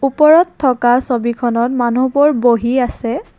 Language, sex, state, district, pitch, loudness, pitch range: Assamese, female, Assam, Kamrup Metropolitan, 250 Hz, -14 LUFS, 240-275 Hz